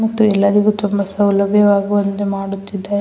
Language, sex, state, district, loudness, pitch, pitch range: Kannada, female, Karnataka, Mysore, -16 LUFS, 200 Hz, 200-205 Hz